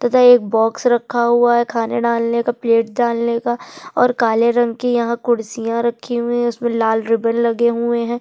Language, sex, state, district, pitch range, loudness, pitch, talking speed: Hindi, female, Chhattisgarh, Sukma, 230-240 Hz, -17 LUFS, 235 Hz, 195 wpm